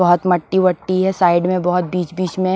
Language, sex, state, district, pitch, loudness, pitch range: Hindi, female, Maharashtra, Washim, 180 Hz, -17 LUFS, 175-185 Hz